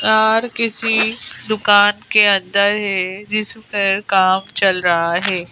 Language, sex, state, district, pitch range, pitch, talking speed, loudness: Hindi, female, Madhya Pradesh, Bhopal, 190-220 Hz, 205 Hz, 130 wpm, -15 LUFS